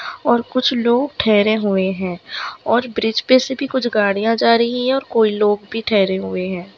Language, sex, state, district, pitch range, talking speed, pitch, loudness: Hindi, female, Bihar, Kishanganj, 205-245 Hz, 205 wpm, 225 Hz, -17 LUFS